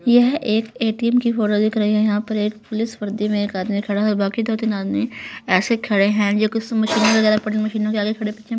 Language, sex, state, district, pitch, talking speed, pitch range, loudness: Hindi, female, Haryana, Rohtak, 215 Hz, 230 wpm, 210-225 Hz, -19 LUFS